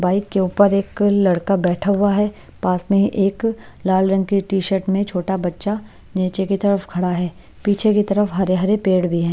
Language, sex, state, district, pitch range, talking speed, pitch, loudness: Hindi, female, Himachal Pradesh, Shimla, 185-200 Hz, 195 wpm, 195 Hz, -19 LUFS